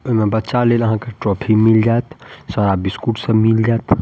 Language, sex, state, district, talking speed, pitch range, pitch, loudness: Maithili, male, Bihar, Madhepura, 210 wpm, 105-115 Hz, 110 Hz, -16 LUFS